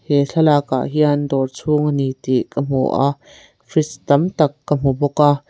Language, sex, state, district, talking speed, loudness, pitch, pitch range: Mizo, female, Mizoram, Aizawl, 205 wpm, -18 LUFS, 145 Hz, 135-150 Hz